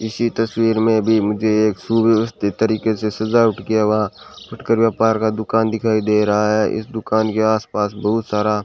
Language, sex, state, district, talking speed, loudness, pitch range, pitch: Hindi, male, Rajasthan, Bikaner, 180 wpm, -18 LUFS, 105-115 Hz, 110 Hz